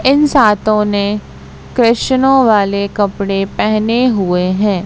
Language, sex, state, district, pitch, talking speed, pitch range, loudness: Hindi, female, Madhya Pradesh, Katni, 210 Hz, 110 wpm, 200-240 Hz, -13 LUFS